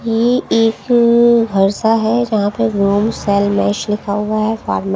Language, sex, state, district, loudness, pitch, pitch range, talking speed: Hindi, female, Punjab, Kapurthala, -14 LUFS, 215 Hz, 200-230 Hz, 155 wpm